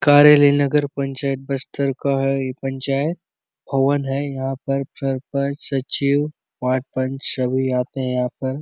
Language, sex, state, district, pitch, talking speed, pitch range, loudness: Hindi, male, Chhattisgarh, Bastar, 135 Hz, 155 wpm, 130-140 Hz, -20 LUFS